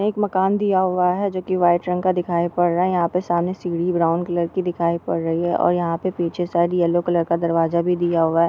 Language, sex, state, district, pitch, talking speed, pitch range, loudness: Hindi, female, Maharashtra, Aurangabad, 175 Hz, 255 wpm, 170-180 Hz, -20 LUFS